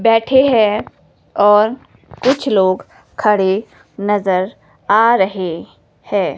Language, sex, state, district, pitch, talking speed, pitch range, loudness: Hindi, female, Himachal Pradesh, Shimla, 210 Hz, 95 wpm, 190-230 Hz, -15 LUFS